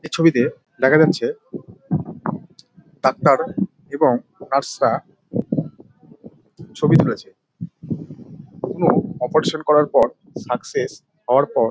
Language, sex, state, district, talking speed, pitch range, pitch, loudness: Bengali, male, West Bengal, Dakshin Dinajpur, 85 wpm, 140-165 Hz, 155 Hz, -20 LUFS